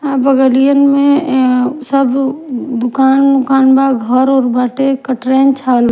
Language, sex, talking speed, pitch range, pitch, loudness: Bhojpuri, female, 110 wpm, 255-275 Hz, 265 Hz, -11 LUFS